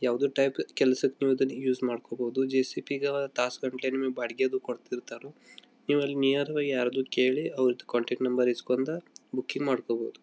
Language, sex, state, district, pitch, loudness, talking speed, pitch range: Kannada, male, Karnataka, Belgaum, 130 Hz, -29 LUFS, 125 wpm, 125-140 Hz